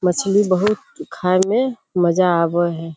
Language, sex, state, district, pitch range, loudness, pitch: Hindi, female, Bihar, Kishanganj, 175-210 Hz, -18 LUFS, 185 Hz